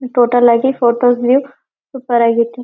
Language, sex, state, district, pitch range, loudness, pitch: Kannada, female, Karnataka, Belgaum, 235-255 Hz, -13 LUFS, 245 Hz